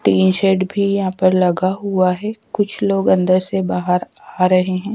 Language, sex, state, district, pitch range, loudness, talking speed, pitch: Hindi, female, Madhya Pradesh, Dhar, 185-200 Hz, -17 LUFS, 195 wpm, 185 Hz